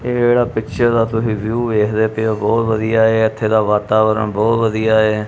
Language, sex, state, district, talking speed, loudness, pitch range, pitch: Punjabi, male, Punjab, Kapurthala, 205 wpm, -16 LUFS, 110-115 Hz, 110 Hz